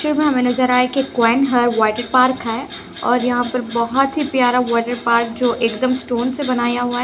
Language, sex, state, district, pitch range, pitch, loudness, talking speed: Hindi, female, Haryana, Charkhi Dadri, 240-255 Hz, 245 Hz, -17 LUFS, 230 wpm